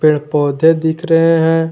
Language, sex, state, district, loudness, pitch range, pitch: Hindi, male, Jharkhand, Garhwa, -13 LUFS, 155-165 Hz, 160 Hz